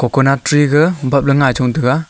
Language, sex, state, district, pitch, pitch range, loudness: Wancho, male, Arunachal Pradesh, Longding, 140 Hz, 130-145 Hz, -13 LUFS